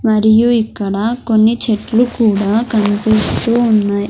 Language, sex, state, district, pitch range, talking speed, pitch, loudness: Telugu, female, Andhra Pradesh, Sri Satya Sai, 210-230 Hz, 100 wpm, 220 Hz, -13 LUFS